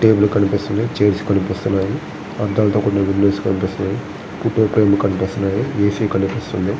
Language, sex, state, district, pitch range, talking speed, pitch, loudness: Telugu, male, Andhra Pradesh, Visakhapatnam, 100-105 Hz, 125 wpm, 100 Hz, -18 LUFS